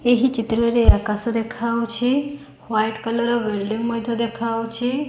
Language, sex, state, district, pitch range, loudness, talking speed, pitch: Odia, female, Odisha, Khordha, 225-240 Hz, -21 LUFS, 105 wpm, 230 Hz